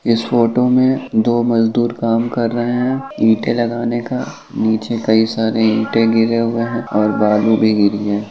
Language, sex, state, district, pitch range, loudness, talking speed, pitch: Hindi, male, Uttar Pradesh, Ghazipur, 110-120 Hz, -16 LUFS, 175 wpm, 115 Hz